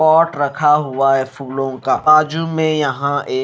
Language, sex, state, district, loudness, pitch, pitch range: Hindi, male, Bihar, Kaimur, -16 LUFS, 145 Hz, 135-155 Hz